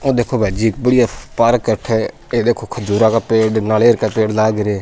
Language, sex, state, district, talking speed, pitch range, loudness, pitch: Rajasthani, male, Rajasthan, Churu, 225 wpm, 110-120 Hz, -15 LUFS, 110 Hz